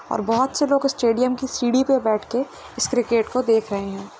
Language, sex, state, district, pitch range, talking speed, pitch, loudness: Hindi, female, Bihar, Gopalganj, 225-260 Hz, 230 wpm, 245 Hz, -21 LUFS